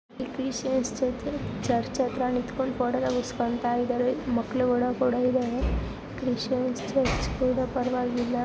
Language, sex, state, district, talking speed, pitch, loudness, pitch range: Kannada, female, Karnataka, Belgaum, 115 wpm, 250 Hz, -27 LUFS, 245-255 Hz